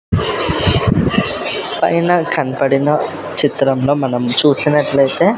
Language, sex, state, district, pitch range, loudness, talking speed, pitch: Telugu, male, Andhra Pradesh, Sri Satya Sai, 135-150 Hz, -15 LUFS, 55 wpm, 140 Hz